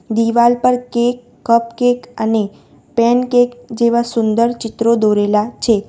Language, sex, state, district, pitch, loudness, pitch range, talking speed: Gujarati, female, Gujarat, Valsad, 235 Hz, -15 LUFS, 225-245 Hz, 130 wpm